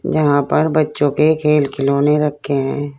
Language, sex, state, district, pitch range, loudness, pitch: Hindi, female, Uttar Pradesh, Saharanpur, 140-150 Hz, -16 LUFS, 145 Hz